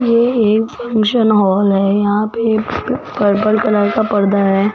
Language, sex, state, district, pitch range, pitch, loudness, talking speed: Hindi, female, Rajasthan, Jaipur, 205-225 Hz, 215 Hz, -14 LUFS, 150 wpm